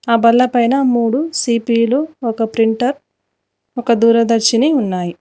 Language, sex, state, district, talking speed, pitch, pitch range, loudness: Telugu, female, Telangana, Mahabubabad, 125 wpm, 235 Hz, 230-255 Hz, -15 LUFS